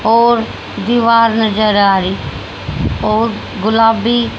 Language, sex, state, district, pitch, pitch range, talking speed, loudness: Hindi, female, Haryana, Rohtak, 225 Hz, 215-230 Hz, 95 wpm, -13 LUFS